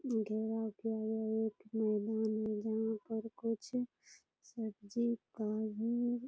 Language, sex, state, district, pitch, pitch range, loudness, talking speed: Hindi, female, Bihar, Purnia, 220 Hz, 215-230 Hz, -38 LUFS, 115 wpm